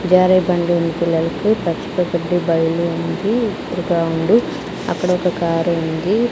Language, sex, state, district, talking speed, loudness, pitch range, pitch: Telugu, female, Andhra Pradesh, Sri Satya Sai, 95 wpm, -18 LUFS, 170-185 Hz, 175 Hz